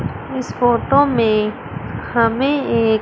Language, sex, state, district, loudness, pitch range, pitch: Hindi, female, Chandigarh, Chandigarh, -17 LUFS, 220-265 Hz, 235 Hz